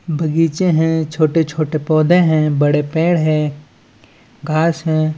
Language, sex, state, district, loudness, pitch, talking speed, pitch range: Chhattisgarhi, male, Chhattisgarh, Balrampur, -16 LUFS, 155 Hz, 125 wpm, 150-160 Hz